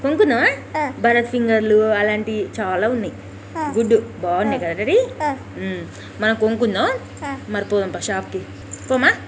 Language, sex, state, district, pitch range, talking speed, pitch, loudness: Telugu, female, Telangana, Karimnagar, 215-285 Hz, 115 wpm, 230 Hz, -19 LUFS